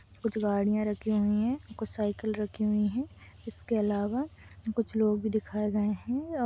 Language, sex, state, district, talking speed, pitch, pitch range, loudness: Hindi, female, Chhattisgarh, Kabirdham, 175 wpm, 215 Hz, 210-225 Hz, -30 LUFS